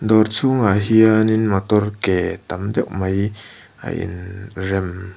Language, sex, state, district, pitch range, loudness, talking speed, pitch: Mizo, male, Mizoram, Aizawl, 95-110 Hz, -18 LUFS, 115 wpm, 100 Hz